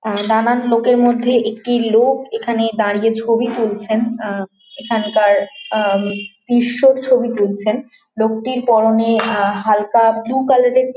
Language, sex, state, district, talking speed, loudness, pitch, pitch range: Bengali, female, West Bengal, Malda, 125 wpm, -16 LUFS, 225 Hz, 215-245 Hz